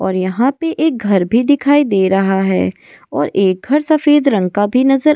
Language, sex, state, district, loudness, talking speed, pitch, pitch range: Hindi, female, Goa, North and South Goa, -14 LUFS, 210 wpm, 240 Hz, 195-290 Hz